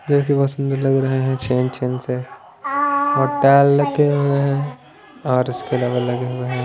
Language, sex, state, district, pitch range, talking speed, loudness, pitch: Hindi, male, Punjab, Pathankot, 125-145 Hz, 190 wpm, -18 LUFS, 135 Hz